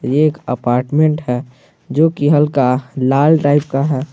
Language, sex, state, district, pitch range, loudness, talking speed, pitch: Hindi, male, Jharkhand, Garhwa, 130-150 Hz, -15 LUFS, 145 wpm, 145 Hz